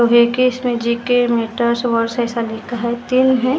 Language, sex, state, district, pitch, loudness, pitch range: Hindi, female, Maharashtra, Gondia, 235 Hz, -17 LUFS, 235-245 Hz